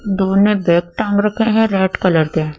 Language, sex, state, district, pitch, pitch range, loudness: Hindi, female, Madhya Pradesh, Dhar, 195 Hz, 170-210 Hz, -15 LUFS